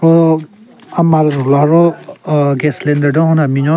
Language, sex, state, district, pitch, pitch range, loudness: Rengma, male, Nagaland, Kohima, 155 Hz, 145-165 Hz, -12 LUFS